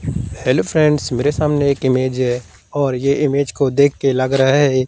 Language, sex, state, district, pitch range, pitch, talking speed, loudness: Hindi, male, Madhya Pradesh, Katni, 130-145 Hz, 135 Hz, 195 wpm, -16 LUFS